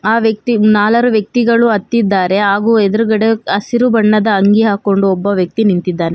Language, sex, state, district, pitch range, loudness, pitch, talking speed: Kannada, female, Karnataka, Bangalore, 200-225 Hz, -12 LUFS, 215 Hz, 135 wpm